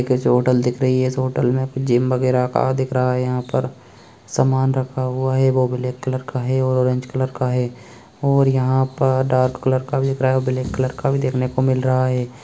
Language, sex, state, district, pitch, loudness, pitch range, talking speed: Hindi, male, Bihar, Begusarai, 130 Hz, -19 LUFS, 125-130 Hz, 235 wpm